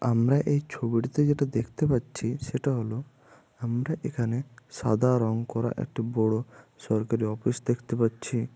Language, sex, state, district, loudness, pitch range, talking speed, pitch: Bengali, male, West Bengal, Malda, -28 LUFS, 115-130 Hz, 135 wpm, 120 Hz